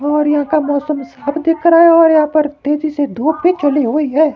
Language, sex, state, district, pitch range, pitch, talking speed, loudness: Hindi, male, Himachal Pradesh, Shimla, 290-315 Hz, 300 Hz, 250 wpm, -13 LUFS